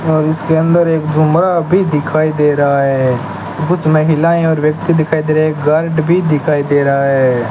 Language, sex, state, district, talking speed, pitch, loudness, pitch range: Hindi, male, Rajasthan, Bikaner, 200 wpm, 155 Hz, -13 LUFS, 145-165 Hz